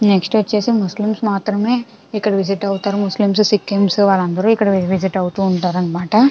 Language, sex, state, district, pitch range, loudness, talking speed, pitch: Telugu, female, Andhra Pradesh, Krishna, 190-215 Hz, -16 LUFS, 145 wpm, 200 Hz